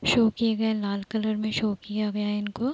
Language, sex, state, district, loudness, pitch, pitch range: Hindi, female, Uttar Pradesh, Deoria, -27 LUFS, 215 Hz, 210-220 Hz